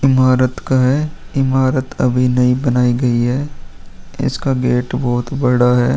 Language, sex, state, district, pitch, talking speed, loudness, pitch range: Hindi, male, Uttar Pradesh, Muzaffarnagar, 125 Hz, 140 wpm, -16 LUFS, 125-130 Hz